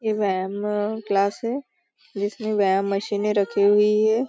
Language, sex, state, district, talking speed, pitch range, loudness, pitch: Hindi, female, Maharashtra, Nagpur, 140 wpm, 200-215 Hz, -22 LUFS, 205 Hz